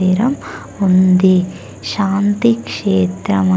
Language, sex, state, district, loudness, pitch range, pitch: Telugu, female, Andhra Pradesh, Sri Satya Sai, -15 LUFS, 180-205 Hz, 185 Hz